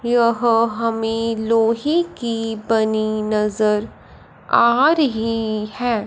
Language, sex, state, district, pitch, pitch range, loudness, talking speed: Hindi, male, Punjab, Fazilka, 225 Hz, 220-235 Hz, -19 LUFS, 90 wpm